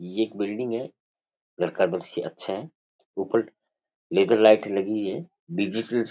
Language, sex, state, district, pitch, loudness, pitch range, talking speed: Rajasthani, male, Rajasthan, Churu, 110 Hz, -25 LUFS, 100-120 Hz, 165 wpm